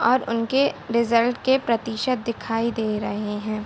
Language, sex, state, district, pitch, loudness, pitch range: Hindi, female, Bihar, Sitamarhi, 230 Hz, -23 LUFS, 220-240 Hz